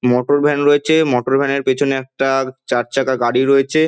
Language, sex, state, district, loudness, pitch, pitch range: Bengali, male, West Bengal, Dakshin Dinajpur, -16 LUFS, 135 Hz, 130-145 Hz